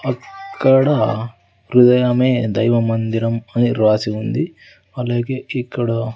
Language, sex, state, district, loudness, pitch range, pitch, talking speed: Telugu, male, Andhra Pradesh, Sri Satya Sai, -17 LUFS, 110-125 Hz, 120 Hz, 90 wpm